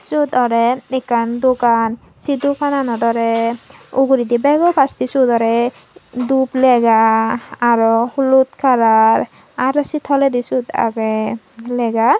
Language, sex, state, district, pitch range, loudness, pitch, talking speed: Chakma, female, Tripura, Dhalai, 230-265 Hz, -15 LUFS, 245 Hz, 115 wpm